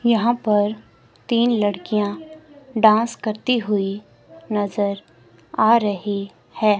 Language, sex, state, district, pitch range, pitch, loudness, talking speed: Hindi, female, Himachal Pradesh, Shimla, 205-235 Hz, 210 Hz, -20 LUFS, 95 wpm